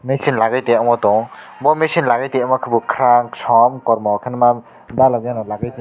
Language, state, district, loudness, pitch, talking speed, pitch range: Kokborok, Tripura, West Tripura, -16 LUFS, 120 Hz, 105 wpm, 115-130 Hz